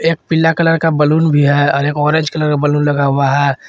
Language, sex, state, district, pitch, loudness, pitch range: Hindi, male, Jharkhand, Garhwa, 150 Hz, -13 LUFS, 145-160 Hz